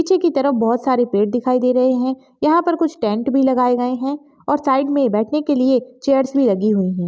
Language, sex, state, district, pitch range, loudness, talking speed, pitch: Hindi, female, Maharashtra, Solapur, 245-280 Hz, -17 LUFS, 245 wpm, 260 Hz